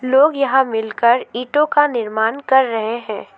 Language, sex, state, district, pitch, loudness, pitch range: Hindi, female, West Bengal, Alipurduar, 250 Hz, -17 LUFS, 225-275 Hz